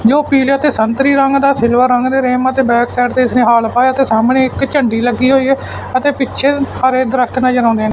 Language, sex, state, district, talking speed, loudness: Punjabi, male, Punjab, Fazilka, 240 wpm, -12 LUFS